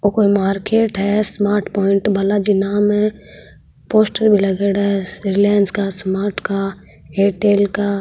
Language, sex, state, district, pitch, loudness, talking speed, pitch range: Marwari, female, Rajasthan, Nagaur, 200 Hz, -17 LUFS, 150 wpm, 195-205 Hz